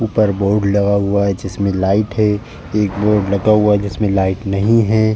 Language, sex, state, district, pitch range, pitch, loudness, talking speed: Hindi, male, Uttar Pradesh, Jalaun, 100-105 Hz, 100 Hz, -15 LUFS, 195 wpm